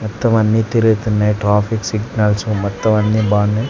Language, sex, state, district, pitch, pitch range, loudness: Telugu, male, Andhra Pradesh, Sri Satya Sai, 110 Hz, 105-110 Hz, -16 LUFS